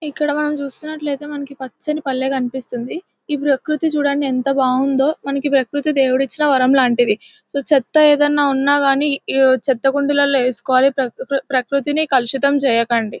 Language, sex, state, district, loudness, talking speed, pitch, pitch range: Telugu, female, Telangana, Nalgonda, -17 LUFS, 120 wpm, 275 Hz, 260-290 Hz